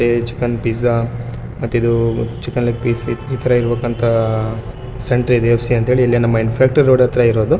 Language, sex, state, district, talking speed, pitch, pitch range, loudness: Kannada, male, Karnataka, Bellary, 150 wpm, 120 Hz, 115-125 Hz, -16 LUFS